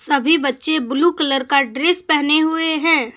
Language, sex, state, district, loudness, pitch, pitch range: Hindi, female, Jharkhand, Deoghar, -16 LUFS, 310 Hz, 275-325 Hz